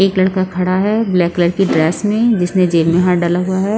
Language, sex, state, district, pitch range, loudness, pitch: Hindi, female, Punjab, Pathankot, 175-195 Hz, -14 LUFS, 185 Hz